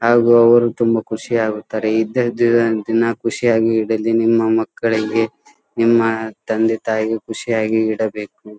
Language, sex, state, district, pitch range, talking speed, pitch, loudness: Kannada, male, Karnataka, Dharwad, 110-115 Hz, 120 wpm, 115 Hz, -17 LUFS